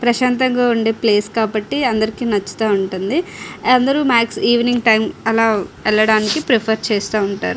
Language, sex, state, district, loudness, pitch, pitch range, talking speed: Telugu, female, Andhra Pradesh, Srikakulam, -16 LUFS, 225 Hz, 215-245 Hz, 110 wpm